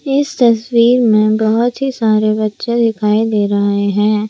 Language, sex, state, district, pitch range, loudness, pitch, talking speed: Hindi, female, Rajasthan, Jaipur, 215-240 Hz, -13 LUFS, 220 Hz, 155 wpm